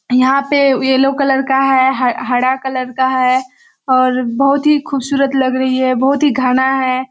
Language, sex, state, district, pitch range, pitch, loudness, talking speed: Hindi, female, Bihar, Kishanganj, 255-275 Hz, 265 Hz, -14 LUFS, 185 wpm